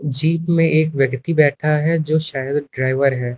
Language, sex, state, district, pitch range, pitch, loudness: Hindi, male, Uttar Pradesh, Lucknow, 135-160 Hz, 150 Hz, -17 LUFS